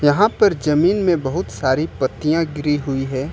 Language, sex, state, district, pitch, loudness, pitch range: Hindi, male, Uttar Pradesh, Lucknow, 150 Hz, -18 LUFS, 135-170 Hz